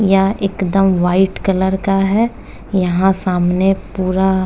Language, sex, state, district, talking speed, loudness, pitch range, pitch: Hindi, female, Uttar Pradesh, Jalaun, 135 wpm, -15 LUFS, 185-195 Hz, 190 Hz